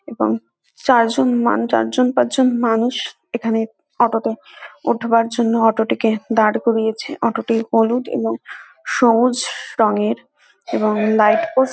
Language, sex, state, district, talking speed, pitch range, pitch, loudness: Bengali, female, West Bengal, North 24 Parganas, 135 wpm, 215-235 Hz, 225 Hz, -18 LUFS